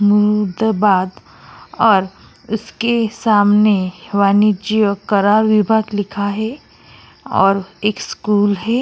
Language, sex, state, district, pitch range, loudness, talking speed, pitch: Hindi, female, Uttar Pradesh, Jyotiba Phule Nagar, 200-220 Hz, -16 LUFS, 95 wpm, 210 Hz